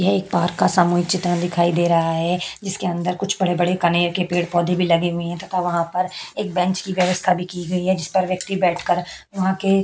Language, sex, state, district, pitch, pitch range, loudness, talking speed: Hindi, female, Uttar Pradesh, Hamirpur, 180 Hz, 175-185 Hz, -20 LUFS, 250 wpm